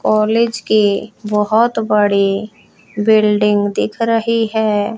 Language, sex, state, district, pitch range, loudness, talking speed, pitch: Hindi, female, Haryana, Jhajjar, 210-225 Hz, -15 LUFS, 95 wpm, 215 Hz